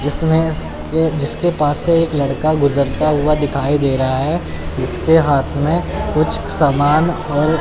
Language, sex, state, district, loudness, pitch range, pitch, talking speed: Hindi, male, Chandigarh, Chandigarh, -16 LUFS, 145-160 Hz, 150 Hz, 150 wpm